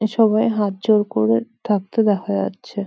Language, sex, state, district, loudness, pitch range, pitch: Bengali, female, West Bengal, Kolkata, -19 LUFS, 195-220 Hz, 210 Hz